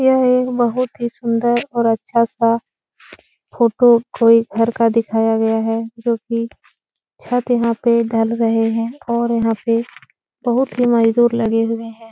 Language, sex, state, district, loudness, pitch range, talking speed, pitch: Hindi, female, Uttar Pradesh, Etah, -17 LUFS, 225-240 Hz, 155 wpm, 230 Hz